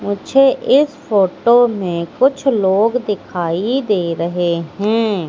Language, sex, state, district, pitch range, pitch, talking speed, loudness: Hindi, female, Madhya Pradesh, Katni, 175-250 Hz, 205 Hz, 115 wpm, -16 LUFS